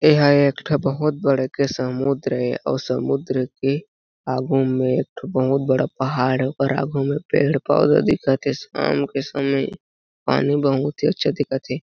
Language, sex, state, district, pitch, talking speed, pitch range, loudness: Chhattisgarhi, male, Chhattisgarh, Jashpur, 135 Hz, 190 wpm, 130-140 Hz, -21 LUFS